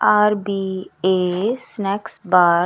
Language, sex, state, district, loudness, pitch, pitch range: Punjabi, female, Punjab, Kapurthala, -19 LUFS, 195 Hz, 180-210 Hz